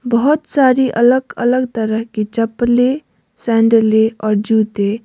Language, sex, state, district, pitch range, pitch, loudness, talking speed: Hindi, female, Sikkim, Gangtok, 220-255 Hz, 230 Hz, -15 LUFS, 120 wpm